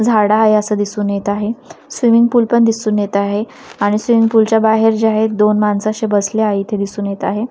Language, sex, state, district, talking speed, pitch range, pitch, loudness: Marathi, female, Maharashtra, Washim, 225 wpm, 205-225 Hz, 215 Hz, -14 LUFS